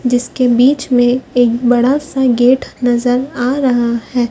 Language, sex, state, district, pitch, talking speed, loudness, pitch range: Hindi, female, Madhya Pradesh, Dhar, 245 Hz, 155 wpm, -13 LUFS, 245-260 Hz